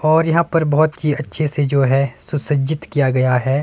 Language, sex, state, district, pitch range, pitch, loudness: Hindi, male, Himachal Pradesh, Shimla, 135-155 Hz, 145 Hz, -17 LUFS